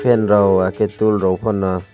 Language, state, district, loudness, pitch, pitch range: Kokborok, Tripura, West Tripura, -16 LUFS, 105 Hz, 95-110 Hz